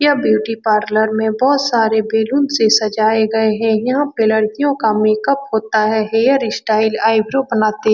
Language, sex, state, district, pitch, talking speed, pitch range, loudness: Hindi, female, Bihar, Saran, 220 Hz, 175 wpm, 215-245 Hz, -15 LUFS